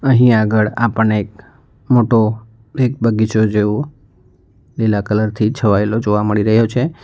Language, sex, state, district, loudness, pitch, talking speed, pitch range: Gujarati, male, Gujarat, Valsad, -15 LUFS, 110 Hz, 135 wpm, 105-120 Hz